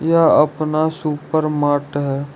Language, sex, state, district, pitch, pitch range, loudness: Hindi, male, Jharkhand, Ranchi, 155 Hz, 145-155 Hz, -18 LUFS